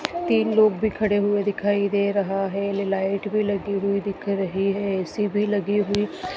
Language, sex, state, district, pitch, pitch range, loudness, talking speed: Hindi, female, Madhya Pradesh, Dhar, 200 Hz, 200-210 Hz, -23 LUFS, 190 wpm